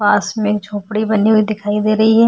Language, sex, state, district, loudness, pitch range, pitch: Hindi, female, Goa, North and South Goa, -16 LUFS, 210-215 Hz, 215 Hz